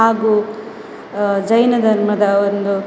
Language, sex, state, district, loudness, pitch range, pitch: Kannada, female, Karnataka, Dakshina Kannada, -15 LUFS, 200-220 Hz, 210 Hz